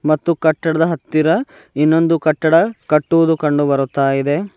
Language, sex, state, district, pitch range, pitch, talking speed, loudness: Kannada, male, Karnataka, Bidar, 150-165 Hz, 155 Hz, 90 wpm, -16 LUFS